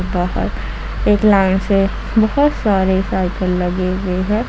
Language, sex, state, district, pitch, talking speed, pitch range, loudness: Hindi, female, Jharkhand, Ranchi, 190 Hz, 145 wpm, 185-210 Hz, -17 LUFS